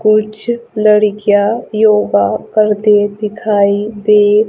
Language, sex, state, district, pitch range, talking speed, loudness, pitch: Hindi, male, Madhya Pradesh, Umaria, 205-215 Hz, 80 wpm, -12 LUFS, 210 Hz